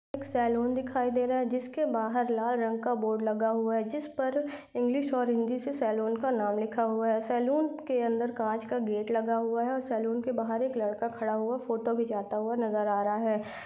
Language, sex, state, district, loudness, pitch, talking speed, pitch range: Hindi, female, Uttar Pradesh, Gorakhpur, -30 LUFS, 235 Hz, 225 wpm, 225-255 Hz